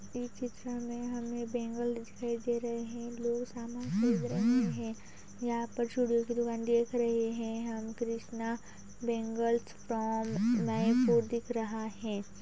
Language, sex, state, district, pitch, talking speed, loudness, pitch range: Hindi, female, Uttar Pradesh, Budaun, 235 Hz, 145 wpm, -34 LUFS, 225-240 Hz